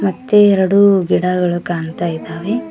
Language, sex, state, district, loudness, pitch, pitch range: Kannada, male, Karnataka, Koppal, -14 LUFS, 180 Hz, 175-200 Hz